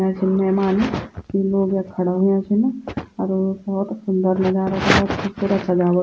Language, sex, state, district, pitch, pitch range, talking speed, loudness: Garhwali, female, Uttarakhand, Tehri Garhwal, 190 Hz, 190-195 Hz, 140 wpm, -20 LUFS